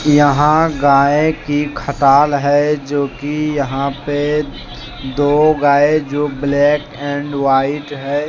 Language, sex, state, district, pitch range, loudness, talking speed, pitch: Hindi, male, Jharkhand, Deoghar, 140-150 Hz, -15 LUFS, 115 wpm, 145 Hz